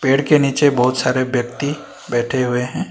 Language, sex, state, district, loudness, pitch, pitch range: Hindi, male, Karnataka, Bangalore, -17 LUFS, 130 Hz, 125-140 Hz